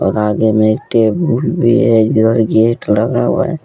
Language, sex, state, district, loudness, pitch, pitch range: Hindi, male, Jharkhand, Deoghar, -13 LUFS, 115 Hz, 110-130 Hz